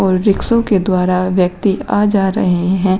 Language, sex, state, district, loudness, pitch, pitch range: Hindi, female, Uttar Pradesh, Shamli, -14 LUFS, 190 Hz, 185-200 Hz